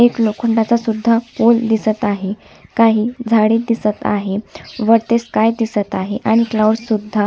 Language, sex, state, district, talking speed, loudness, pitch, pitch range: Marathi, female, Maharashtra, Sindhudurg, 140 wpm, -16 LUFS, 225 Hz, 215-230 Hz